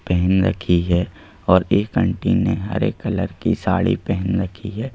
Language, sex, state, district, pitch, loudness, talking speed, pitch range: Hindi, male, Madhya Pradesh, Bhopal, 95 Hz, -20 LUFS, 170 wpm, 90-100 Hz